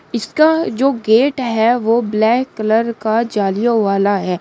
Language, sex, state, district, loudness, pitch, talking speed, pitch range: Hindi, female, Uttar Pradesh, Shamli, -15 LUFS, 225 Hz, 150 wpm, 215-245 Hz